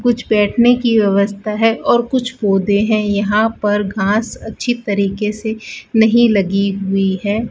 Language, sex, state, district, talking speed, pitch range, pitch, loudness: Hindi, female, Rajasthan, Bikaner, 150 wpm, 200-225 Hz, 210 Hz, -15 LUFS